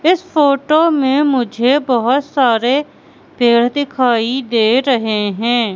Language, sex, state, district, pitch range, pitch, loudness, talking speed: Hindi, female, Madhya Pradesh, Katni, 235-285 Hz, 255 Hz, -14 LUFS, 115 wpm